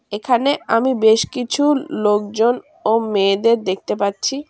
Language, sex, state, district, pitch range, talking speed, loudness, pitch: Bengali, female, West Bengal, Cooch Behar, 205-260 Hz, 120 wpm, -18 LUFS, 230 Hz